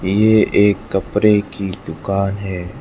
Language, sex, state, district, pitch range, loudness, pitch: Hindi, male, Arunachal Pradesh, Lower Dibang Valley, 95-105 Hz, -17 LUFS, 100 Hz